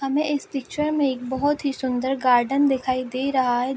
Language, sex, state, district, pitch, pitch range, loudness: Hindi, female, Bihar, Sitamarhi, 265 Hz, 255-280 Hz, -23 LUFS